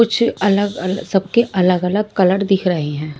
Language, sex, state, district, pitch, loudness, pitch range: Hindi, female, Maharashtra, Mumbai Suburban, 195 Hz, -17 LUFS, 180-205 Hz